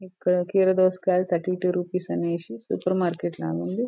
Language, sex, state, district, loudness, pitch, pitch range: Telugu, female, Telangana, Nalgonda, -25 LUFS, 180 Hz, 115-185 Hz